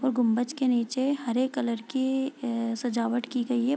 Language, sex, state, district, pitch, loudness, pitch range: Hindi, female, Bihar, Gopalganj, 245 Hz, -28 LUFS, 235-265 Hz